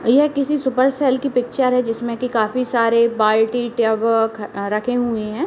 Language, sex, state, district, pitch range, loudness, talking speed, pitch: Hindi, female, Uttar Pradesh, Deoria, 225-255 Hz, -18 LUFS, 175 wpm, 240 Hz